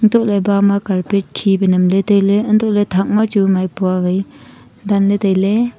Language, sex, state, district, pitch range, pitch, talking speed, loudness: Wancho, female, Arunachal Pradesh, Longding, 190-205 Hz, 200 Hz, 220 wpm, -15 LUFS